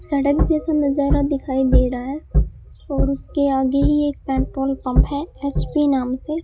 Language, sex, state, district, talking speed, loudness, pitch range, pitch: Hindi, male, Rajasthan, Bikaner, 175 wpm, -20 LUFS, 270-295 Hz, 280 Hz